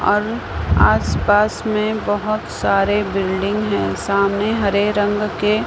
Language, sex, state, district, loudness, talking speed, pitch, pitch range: Hindi, female, Maharashtra, Mumbai Suburban, -18 LUFS, 115 wpm, 205 Hz, 190-210 Hz